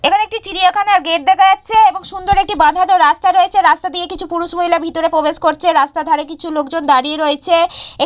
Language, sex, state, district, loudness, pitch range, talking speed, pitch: Bengali, female, West Bengal, Purulia, -13 LUFS, 315-380 Hz, 195 wpm, 345 Hz